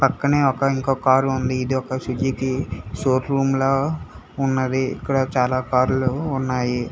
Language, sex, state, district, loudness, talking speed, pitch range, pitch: Telugu, male, Telangana, Hyderabad, -21 LUFS, 145 wpm, 130-135 Hz, 130 Hz